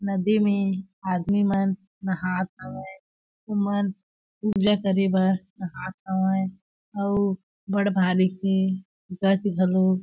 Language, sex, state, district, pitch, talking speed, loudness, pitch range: Chhattisgarhi, female, Chhattisgarh, Jashpur, 190 Hz, 110 wpm, -25 LUFS, 185-200 Hz